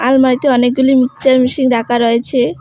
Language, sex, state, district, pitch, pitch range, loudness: Bengali, female, West Bengal, Alipurduar, 255 Hz, 240-265 Hz, -12 LUFS